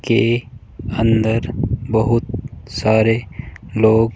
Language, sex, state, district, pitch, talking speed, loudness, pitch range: Hindi, male, Rajasthan, Jaipur, 115 Hz, 70 wpm, -18 LUFS, 110-120 Hz